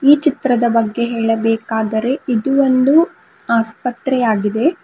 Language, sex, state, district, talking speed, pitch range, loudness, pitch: Kannada, female, Karnataka, Bidar, 85 wpm, 225-270 Hz, -16 LUFS, 240 Hz